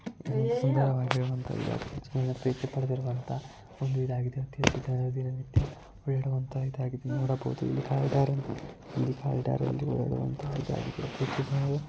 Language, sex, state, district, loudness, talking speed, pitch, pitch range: Kannada, male, Karnataka, Belgaum, -31 LUFS, 100 wpm, 130 Hz, 125-135 Hz